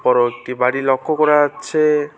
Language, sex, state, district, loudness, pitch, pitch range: Bengali, male, West Bengal, Alipurduar, -17 LUFS, 135 Hz, 125-150 Hz